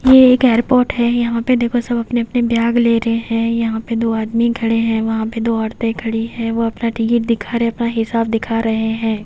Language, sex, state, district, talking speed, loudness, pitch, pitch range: Hindi, female, Haryana, Jhajjar, 235 wpm, -16 LUFS, 230 Hz, 225-235 Hz